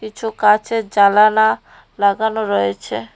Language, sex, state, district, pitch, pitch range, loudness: Bengali, female, West Bengal, Cooch Behar, 210 Hz, 200-220 Hz, -16 LUFS